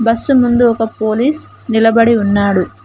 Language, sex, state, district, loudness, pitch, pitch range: Telugu, female, Telangana, Mahabubabad, -12 LUFS, 230 Hz, 220-240 Hz